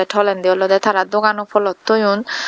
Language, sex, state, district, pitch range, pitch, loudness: Chakma, female, Tripura, Dhalai, 190-210 Hz, 205 Hz, -16 LUFS